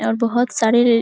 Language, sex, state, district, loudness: Hindi, female, Bihar, Araria, -17 LUFS